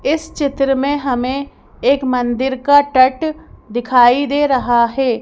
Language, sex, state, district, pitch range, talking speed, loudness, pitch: Hindi, female, Madhya Pradesh, Bhopal, 250-285 Hz, 140 wpm, -15 LUFS, 270 Hz